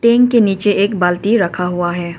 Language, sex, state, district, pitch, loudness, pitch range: Hindi, female, Arunachal Pradesh, Papum Pare, 195 Hz, -14 LUFS, 180-220 Hz